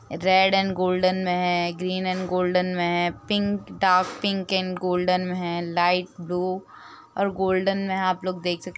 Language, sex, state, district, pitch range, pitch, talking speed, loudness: Hindi, female, Uttar Pradesh, Jalaun, 180-190 Hz, 185 Hz, 190 wpm, -24 LUFS